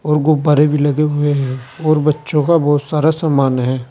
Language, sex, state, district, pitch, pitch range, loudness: Hindi, male, Uttar Pradesh, Saharanpur, 150 Hz, 140-155 Hz, -15 LUFS